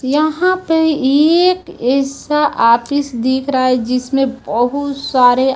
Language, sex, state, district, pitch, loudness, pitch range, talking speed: Hindi, female, Chhattisgarh, Raipur, 270 Hz, -14 LUFS, 255-300 Hz, 120 wpm